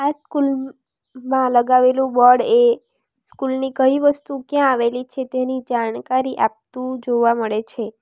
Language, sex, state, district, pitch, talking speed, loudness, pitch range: Gujarati, female, Gujarat, Valsad, 260 Hz, 135 wpm, -18 LUFS, 245-275 Hz